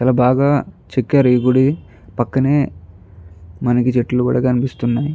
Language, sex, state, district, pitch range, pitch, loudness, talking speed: Telugu, male, Andhra Pradesh, Guntur, 115-130 Hz, 125 Hz, -16 LUFS, 115 wpm